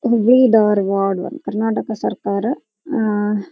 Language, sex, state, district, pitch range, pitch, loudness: Kannada, female, Karnataka, Dharwad, 200-235 Hz, 215 Hz, -17 LUFS